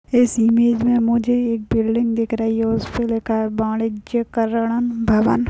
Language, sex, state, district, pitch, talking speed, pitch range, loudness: Hindi, female, Uttar Pradesh, Gorakhpur, 230 Hz, 155 wpm, 225-235 Hz, -19 LUFS